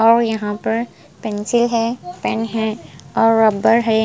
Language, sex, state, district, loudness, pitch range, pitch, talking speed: Hindi, female, Punjab, Pathankot, -18 LUFS, 215-230 Hz, 225 Hz, 150 wpm